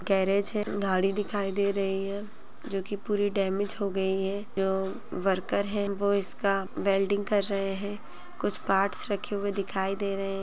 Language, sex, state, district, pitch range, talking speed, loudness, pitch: Hindi, female, Chhattisgarh, Sarguja, 195-205 Hz, 180 wpm, -28 LUFS, 200 Hz